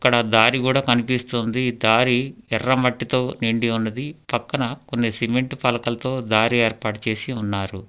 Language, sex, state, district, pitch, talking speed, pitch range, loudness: Telugu, male, Telangana, Hyderabad, 120 Hz, 130 wpm, 115-125 Hz, -21 LUFS